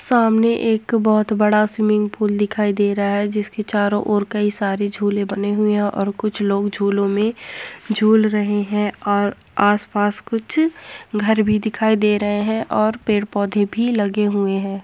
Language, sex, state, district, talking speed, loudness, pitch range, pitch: Hindi, female, Jharkhand, Jamtara, 170 wpm, -19 LUFS, 205-215 Hz, 210 Hz